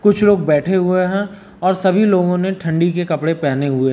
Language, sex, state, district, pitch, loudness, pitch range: Hindi, male, Uttar Pradesh, Lucknow, 185 Hz, -16 LUFS, 165-195 Hz